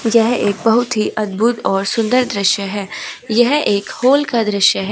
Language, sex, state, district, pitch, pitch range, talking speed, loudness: Hindi, female, Uttar Pradesh, Shamli, 225 Hz, 205-240 Hz, 185 wpm, -16 LUFS